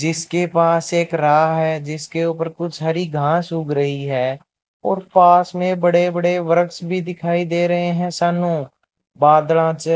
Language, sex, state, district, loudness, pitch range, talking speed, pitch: Hindi, male, Rajasthan, Bikaner, -18 LUFS, 160-175 Hz, 155 wpm, 165 Hz